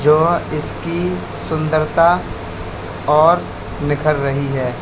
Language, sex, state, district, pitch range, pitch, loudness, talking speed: Hindi, male, Uttar Pradesh, Lalitpur, 135-165 Hz, 150 Hz, -17 LUFS, 85 wpm